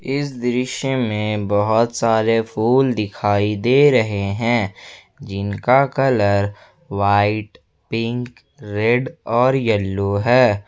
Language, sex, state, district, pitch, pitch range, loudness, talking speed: Hindi, male, Jharkhand, Ranchi, 115 Hz, 100-125 Hz, -18 LUFS, 100 wpm